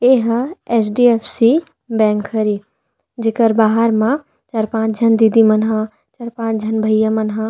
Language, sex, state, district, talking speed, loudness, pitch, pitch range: Chhattisgarhi, female, Chhattisgarh, Rajnandgaon, 175 wpm, -16 LUFS, 225 Hz, 220-235 Hz